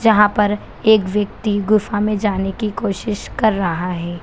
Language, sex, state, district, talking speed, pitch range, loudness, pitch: Hindi, female, Bihar, Kishanganj, 170 wpm, 195-215 Hz, -18 LUFS, 205 Hz